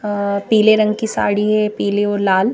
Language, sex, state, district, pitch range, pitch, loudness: Hindi, female, Madhya Pradesh, Bhopal, 205-215 Hz, 210 Hz, -16 LUFS